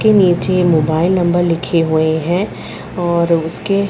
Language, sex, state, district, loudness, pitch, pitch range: Hindi, female, Chhattisgarh, Rajnandgaon, -15 LUFS, 175 Hz, 165-185 Hz